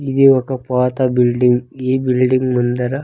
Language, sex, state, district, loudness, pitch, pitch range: Telugu, male, Andhra Pradesh, Sri Satya Sai, -15 LUFS, 130 Hz, 125-130 Hz